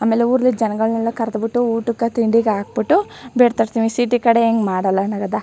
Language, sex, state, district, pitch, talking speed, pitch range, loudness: Kannada, female, Karnataka, Chamarajanagar, 230 Hz, 175 wpm, 220-240 Hz, -18 LUFS